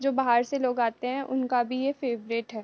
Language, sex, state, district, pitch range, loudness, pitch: Hindi, female, Uttar Pradesh, Jalaun, 235-265 Hz, -27 LUFS, 250 Hz